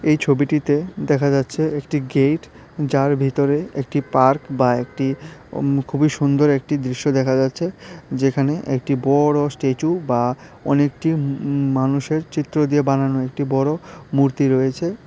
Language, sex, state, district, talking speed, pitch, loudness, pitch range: Bengali, male, Tripura, West Tripura, 135 wpm, 140 Hz, -19 LUFS, 135-150 Hz